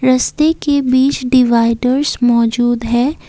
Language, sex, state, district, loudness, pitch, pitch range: Hindi, female, Assam, Kamrup Metropolitan, -13 LUFS, 255 Hz, 240-275 Hz